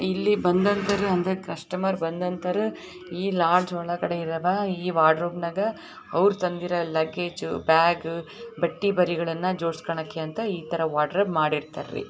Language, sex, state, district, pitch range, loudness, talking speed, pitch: Kannada, female, Karnataka, Bijapur, 165-190 Hz, -25 LUFS, 100 wpm, 180 Hz